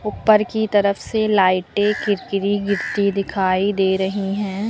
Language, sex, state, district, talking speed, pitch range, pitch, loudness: Hindi, female, Uttar Pradesh, Lucknow, 140 wpm, 195-210 Hz, 200 Hz, -19 LUFS